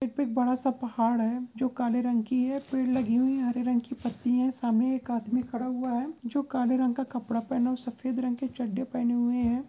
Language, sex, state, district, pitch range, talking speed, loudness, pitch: Hindi, female, Goa, North and South Goa, 240-255 Hz, 255 wpm, -29 LUFS, 250 Hz